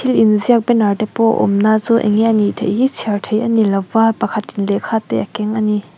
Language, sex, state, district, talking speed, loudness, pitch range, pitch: Mizo, female, Mizoram, Aizawl, 230 wpm, -15 LUFS, 210-225 Hz, 220 Hz